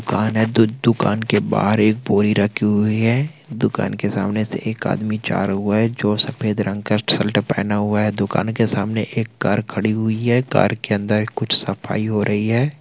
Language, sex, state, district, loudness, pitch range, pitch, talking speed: Hindi, male, Uttarakhand, Tehri Garhwal, -19 LUFS, 105-115 Hz, 110 Hz, 200 wpm